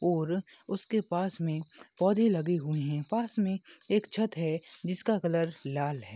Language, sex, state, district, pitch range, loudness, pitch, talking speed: Hindi, male, Maharashtra, Nagpur, 160-205 Hz, -31 LUFS, 175 Hz, 165 wpm